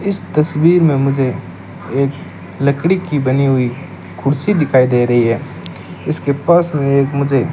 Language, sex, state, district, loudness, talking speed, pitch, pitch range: Hindi, male, Rajasthan, Bikaner, -15 LUFS, 160 wpm, 140 Hz, 125-155 Hz